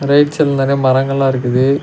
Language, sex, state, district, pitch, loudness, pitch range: Tamil, male, Tamil Nadu, Nilgiris, 135 Hz, -14 LUFS, 130-140 Hz